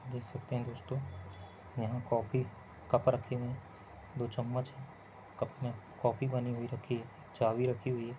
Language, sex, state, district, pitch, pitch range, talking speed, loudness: Hindi, male, Rajasthan, Churu, 120 Hz, 110-125 Hz, 190 wpm, -37 LUFS